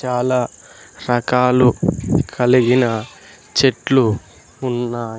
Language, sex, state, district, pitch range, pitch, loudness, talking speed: Telugu, male, Andhra Pradesh, Sri Satya Sai, 115-125 Hz, 125 Hz, -17 LUFS, 60 wpm